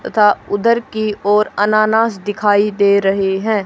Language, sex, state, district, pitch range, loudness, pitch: Hindi, female, Haryana, Charkhi Dadri, 205-215 Hz, -15 LUFS, 210 Hz